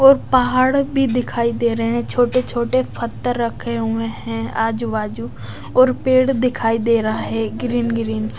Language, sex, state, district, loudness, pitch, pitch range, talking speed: Hindi, female, Odisha, Nuapada, -18 LUFS, 235 Hz, 210-250 Hz, 170 wpm